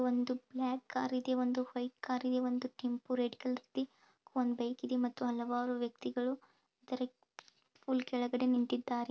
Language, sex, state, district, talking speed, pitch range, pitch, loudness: Kannada, female, Karnataka, Belgaum, 130 wpm, 245-255 Hz, 250 Hz, -37 LUFS